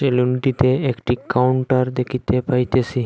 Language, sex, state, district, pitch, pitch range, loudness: Bengali, male, Assam, Hailakandi, 125 Hz, 125-130 Hz, -19 LUFS